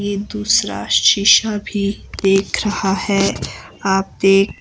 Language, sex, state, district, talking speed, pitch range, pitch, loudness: Hindi, female, Himachal Pradesh, Shimla, 115 wpm, 195-205 Hz, 200 Hz, -16 LUFS